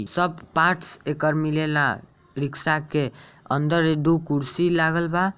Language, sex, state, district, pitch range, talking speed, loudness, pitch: Bhojpuri, male, Bihar, Saran, 145-170 Hz, 135 wpm, -23 LUFS, 155 Hz